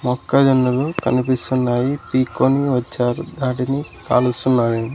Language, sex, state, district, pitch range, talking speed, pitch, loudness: Telugu, male, Andhra Pradesh, Sri Satya Sai, 125-135 Hz, 85 wpm, 130 Hz, -18 LUFS